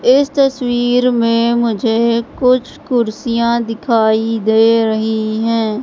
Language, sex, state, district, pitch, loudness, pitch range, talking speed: Hindi, female, Madhya Pradesh, Katni, 230 Hz, -14 LUFS, 225-245 Hz, 105 wpm